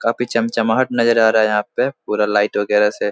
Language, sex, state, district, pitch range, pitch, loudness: Hindi, male, Bihar, Supaul, 105-115 Hz, 110 Hz, -17 LUFS